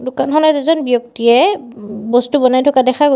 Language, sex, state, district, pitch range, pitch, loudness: Assamese, female, Assam, Sonitpur, 240-290 Hz, 255 Hz, -13 LUFS